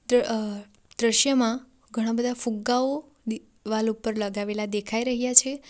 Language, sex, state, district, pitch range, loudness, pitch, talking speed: Gujarati, female, Gujarat, Valsad, 220-250 Hz, -24 LUFS, 230 Hz, 125 wpm